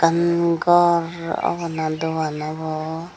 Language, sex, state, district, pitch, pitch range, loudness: Chakma, female, Tripura, Dhalai, 165 Hz, 160-170 Hz, -21 LUFS